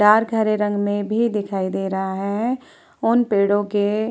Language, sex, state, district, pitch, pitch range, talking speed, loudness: Hindi, female, Uttar Pradesh, Muzaffarnagar, 210 Hz, 200-225 Hz, 190 wpm, -20 LUFS